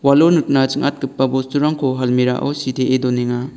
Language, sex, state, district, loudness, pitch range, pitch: Garo, male, Meghalaya, West Garo Hills, -17 LUFS, 125-140 Hz, 135 Hz